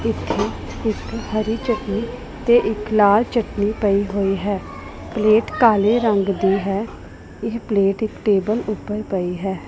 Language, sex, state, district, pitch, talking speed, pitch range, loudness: Punjabi, female, Punjab, Pathankot, 210 Hz, 145 wpm, 200-220 Hz, -20 LUFS